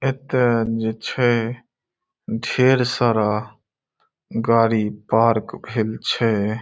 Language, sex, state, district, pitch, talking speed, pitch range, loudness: Maithili, male, Bihar, Saharsa, 115 Hz, 80 wpm, 110-120 Hz, -20 LUFS